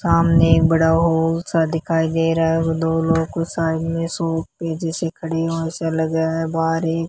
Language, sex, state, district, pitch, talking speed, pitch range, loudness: Hindi, female, Rajasthan, Bikaner, 165 Hz, 205 wpm, 160-165 Hz, -19 LUFS